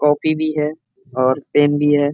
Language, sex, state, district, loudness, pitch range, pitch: Hindi, male, Bihar, Bhagalpur, -17 LUFS, 130-150 Hz, 145 Hz